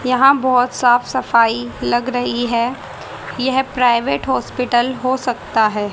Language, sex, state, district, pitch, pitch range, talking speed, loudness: Hindi, female, Haryana, Rohtak, 245 Hz, 235-255 Hz, 130 wpm, -17 LUFS